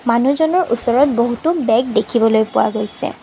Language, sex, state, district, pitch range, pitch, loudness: Assamese, female, Assam, Kamrup Metropolitan, 230-280 Hz, 240 Hz, -16 LUFS